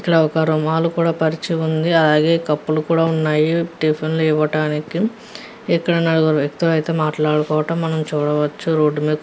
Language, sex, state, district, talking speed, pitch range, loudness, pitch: Telugu, female, Andhra Pradesh, Guntur, 150 wpm, 155-165 Hz, -18 LUFS, 160 Hz